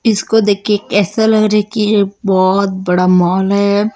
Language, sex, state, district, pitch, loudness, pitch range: Hindi, female, Chhattisgarh, Raipur, 205 Hz, -13 LUFS, 190-215 Hz